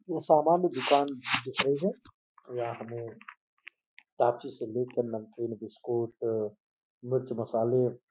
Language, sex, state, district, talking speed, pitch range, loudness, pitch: Hindi, male, Uttar Pradesh, Gorakhpur, 140 wpm, 115-140 Hz, -30 LUFS, 120 Hz